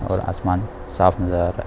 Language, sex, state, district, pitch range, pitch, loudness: Hindi, male, Bihar, East Champaran, 90-95 Hz, 90 Hz, -21 LUFS